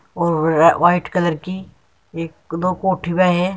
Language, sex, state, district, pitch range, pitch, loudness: Hindi, male, Uttar Pradesh, Muzaffarnagar, 165-185 Hz, 175 Hz, -17 LUFS